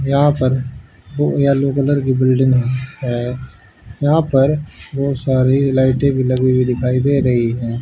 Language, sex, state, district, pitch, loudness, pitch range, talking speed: Hindi, male, Haryana, Jhajjar, 130 Hz, -16 LUFS, 125-140 Hz, 155 wpm